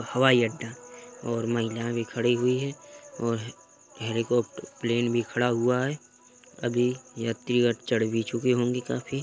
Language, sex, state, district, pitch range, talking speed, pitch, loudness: Hindi, male, Uttar Pradesh, Etah, 115-125 Hz, 150 wpm, 120 Hz, -27 LUFS